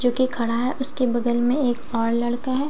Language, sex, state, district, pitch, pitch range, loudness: Hindi, female, Bihar, Katihar, 245 Hz, 240-260 Hz, -20 LUFS